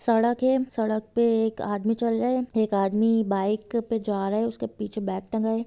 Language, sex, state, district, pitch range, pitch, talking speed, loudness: Hindi, female, Bihar, Sitamarhi, 210-230 Hz, 225 Hz, 220 wpm, -25 LUFS